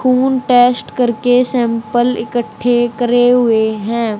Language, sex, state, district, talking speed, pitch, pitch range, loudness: Hindi, male, Haryana, Rohtak, 115 wpm, 245 Hz, 230-245 Hz, -14 LUFS